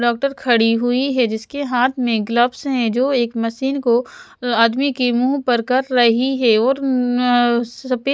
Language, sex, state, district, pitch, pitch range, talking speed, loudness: Hindi, female, Haryana, Jhajjar, 245 Hz, 235-265 Hz, 175 wpm, -17 LUFS